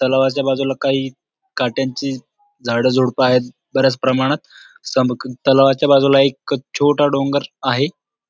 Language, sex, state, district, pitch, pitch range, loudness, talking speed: Marathi, male, Maharashtra, Dhule, 135 Hz, 130-140 Hz, -17 LUFS, 115 wpm